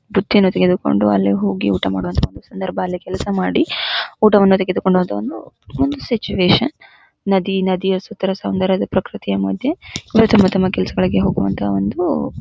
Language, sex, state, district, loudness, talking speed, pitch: Kannada, female, Karnataka, Dharwad, -17 LUFS, 130 wpm, 185 Hz